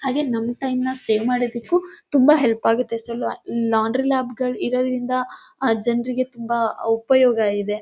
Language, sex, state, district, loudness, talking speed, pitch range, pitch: Kannada, female, Karnataka, Mysore, -21 LUFS, 125 wpm, 230-260 Hz, 250 Hz